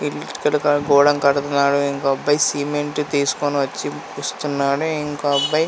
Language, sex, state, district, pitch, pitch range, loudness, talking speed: Telugu, male, Andhra Pradesh, Visakhapatnam, 145 Hz, 140-145 Hz, -19 LUFS, 105 wpm